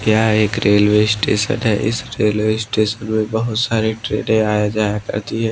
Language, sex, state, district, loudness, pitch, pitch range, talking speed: Hindi, male, Maharashtra, Washim, -17 LUFS, 110 Hz, 105-110 Hz, 175 wpm